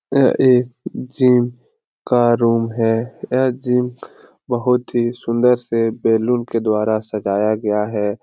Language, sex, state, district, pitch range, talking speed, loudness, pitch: Hindi, male, Bihar, Lakhisarai, 115-125 Hz, 130 wpm, -18 LUFS, 120 Hz